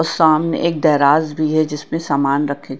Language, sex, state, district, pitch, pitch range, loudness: Hindi, female, Punjab, Kapurthala, 155 Hz, 145-160 Hz, -16 LUFS